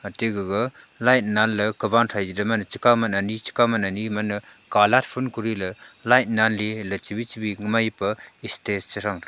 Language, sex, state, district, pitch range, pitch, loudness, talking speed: Wancho, male, Arunachal Pradesh, Longding, 105-115 Hz, 110 Hz, -23 LUFS, 135 wpm